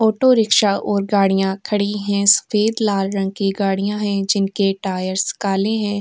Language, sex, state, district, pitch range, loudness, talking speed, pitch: Hindi, female, Uttar Pradesh, Jyotiba Phule Nagar, 195-210 Hz, -18 LUFS, 160 wpm, 200 Hz